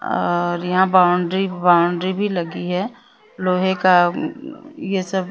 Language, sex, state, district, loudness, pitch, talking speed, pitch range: Hindi, female, Chandigarh, Chandigarh, -18 LUFS, 185 Hz, 135 wpm, 175-205 Hz